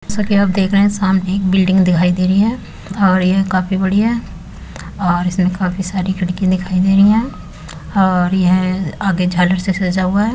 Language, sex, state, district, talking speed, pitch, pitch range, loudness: Hindi, female, Uttar Pradesh, Muzaffarnagar, 205 wpm, 190 Hz, 185-195 Hz, -15 LUFS